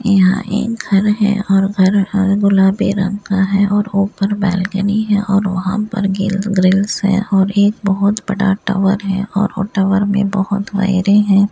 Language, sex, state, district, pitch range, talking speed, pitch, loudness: Hindi, female, Uttar Pradesh, Muzaffarnagar, 195-205 Hz, 175 wpm, 200 Hz, -15 LUFS